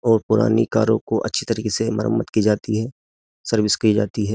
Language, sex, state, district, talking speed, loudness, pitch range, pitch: Hindi, male, Uttar Pradesh, Jyotiba Phule Nagar, 205 wpm, -20 LUFS, 105-115 Hz, 110 Hz